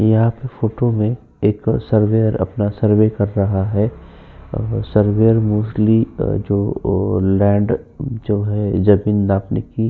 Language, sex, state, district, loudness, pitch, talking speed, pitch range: Hindi, male, Uttar Pradesh, Jyotiba Phule Nagar, -17 LUFS, 105 Hz, 135 wpm, 100-110 Hz